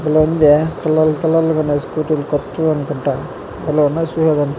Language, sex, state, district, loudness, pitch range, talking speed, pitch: Telugu, male, Andhra Pradesh, Chittoor, -16 LUFS, 145-160 Hz, 145 wpm, 155 Hz